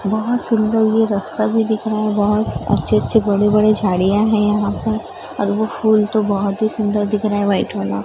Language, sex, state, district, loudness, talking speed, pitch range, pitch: Hindi, female, Maharashtra, Gondia, -17 LUFS, 200 wpm, 205-220 Hz, 215 Hz